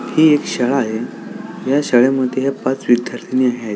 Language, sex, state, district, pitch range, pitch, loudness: Marathi, male, Maharashtra, Solapur, 120-135 Hz, 130 Hz, -17 LUFS